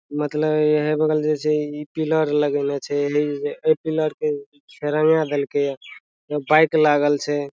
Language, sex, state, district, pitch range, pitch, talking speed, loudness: Maithili, male, Bihar, Madhepura, 145-155 Hz, 150 Hz, 135 wpm, -21 LUFS